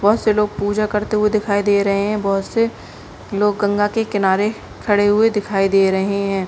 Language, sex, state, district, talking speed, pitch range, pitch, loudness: Hindi, female, Uttar Pradesh, Budaun, 205 wpm, 200-210 Hz, 205 Hz, -18 LUFS